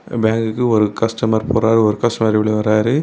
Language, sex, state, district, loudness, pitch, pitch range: Tamil, male, Tamil Nadu, Kanyakumari, -16 LUFS, 110 Hz, 110-115 Hz